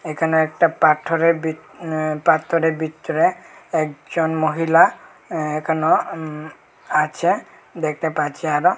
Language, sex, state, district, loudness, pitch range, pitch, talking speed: Bengali, male, Tripura, Unakoti, -20 LUFS, 155-160 Hz, 160 Hz, 110 wpm